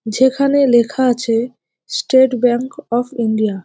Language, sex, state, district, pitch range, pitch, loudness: Bengali, female, West Bengal, North 24 Parganas, 230-265 Hz, 245 Hz, -15 LUFS